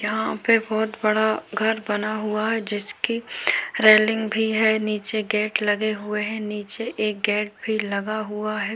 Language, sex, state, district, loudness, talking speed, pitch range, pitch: Hindi, female, Maharashtra, Chandrapur, -22 LUFS, 165 wpm, 210-220 Hz, 215 Hz